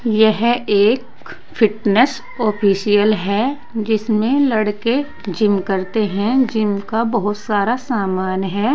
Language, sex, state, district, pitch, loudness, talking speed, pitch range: Hindi, female, Uttar Pradesh, Saharanpur, 215 Hz, -17 LUFS, 110 wpm, 205-235 Hz